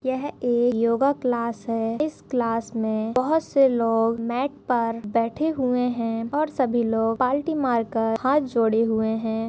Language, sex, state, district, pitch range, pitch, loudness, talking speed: Hindi, female, Maharashtra, Dhule, 225-265 Hz, 235 Hz, -23 LUFS, 160 wpm